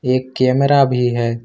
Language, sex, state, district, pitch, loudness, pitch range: Hindi, male, Jharkhand, Ranchi, 130 Hz, -15 LUFS, 120-135 Hz